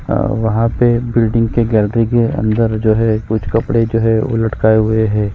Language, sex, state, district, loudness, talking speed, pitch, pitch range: Hindi, female, Chhattisgarh, Sukma, -14 LUFS, 200 wpm, 115 Hz, 110-115 Hz